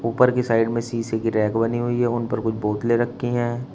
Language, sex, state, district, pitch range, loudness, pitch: Hindi, male, Uttar Pradesh, Shamli, 115-120 Hz, -22 LUFS, 115 Hz